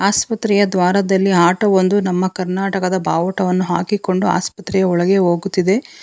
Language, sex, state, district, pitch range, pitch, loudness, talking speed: Kannada, female, Karnataka, Bangalore, 185-195 Hz, 190 Hz, -16 LUFS, 110 wpm